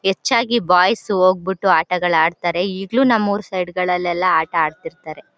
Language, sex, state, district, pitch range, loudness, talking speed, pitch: Kannada, female, Karnataka, Chamarajanagar, 175-195 Hz, -17 LUFS, 145 wpm, 180 Hz